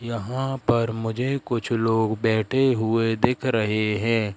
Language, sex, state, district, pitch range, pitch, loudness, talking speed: Hindi, male, Madhya Pradesh, Katni, 110-125 Hz, 115 Hz, -23 LUFS, 135 wpm